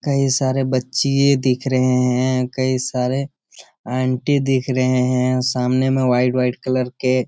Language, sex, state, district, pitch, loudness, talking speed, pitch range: Hindi, male, Bihar, Jamui, 130 Hz, -18 LUFS, 155 wpm, 125-135 Hz